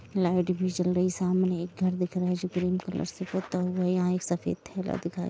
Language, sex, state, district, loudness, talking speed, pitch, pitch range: Hindi, female, Jharkhand, Jamtara, -29 LUFS, 250 wpm, 180 Hz, 180-185 Hz